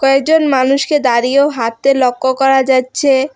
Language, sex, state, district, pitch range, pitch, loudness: Bengali, female, West Bengal, Alipurduar, 255-275 Hz, 270 Hz, -12 LUFS